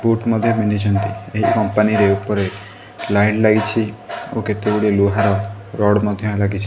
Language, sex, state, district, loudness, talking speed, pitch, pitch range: Odia, male, Odisha, Khordha, -17 LUFS, 125 wpm, 105 Hz, 100-110 Hz